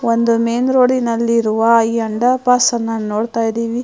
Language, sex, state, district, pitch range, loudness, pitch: Kannada, female, Karnataka, Mysore, 230-240 Hz, -15 LUFS, 230 Hz